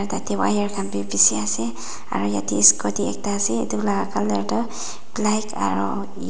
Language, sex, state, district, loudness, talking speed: Nagamese, female, Nagaland, Dimapur, -21 LUFS, 180 wpm